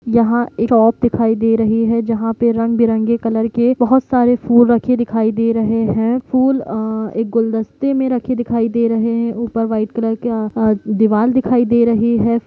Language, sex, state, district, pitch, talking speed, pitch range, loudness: Hindi, female, Jharkhand, Sahebganj, 230 Hz, 175 wpm, 225-240 Hz, -15 LUFS